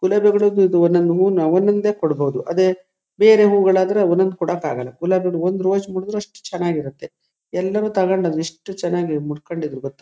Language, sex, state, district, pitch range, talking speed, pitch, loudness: Kannada, female, Karnataka, Shimoga, 170-195 Hz, 165 wpm, 185 Hz, -18 LUFS